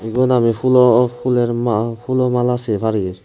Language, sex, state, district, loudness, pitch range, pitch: Chakma, male, Tripura, Unakoti, -16 LUFS, 115-125 Hz, 120 Hz